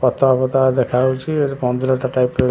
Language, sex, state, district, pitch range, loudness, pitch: Odia, male, Odisha, Khordha, 125-130 Hz, -17 LUFS, 130 Hz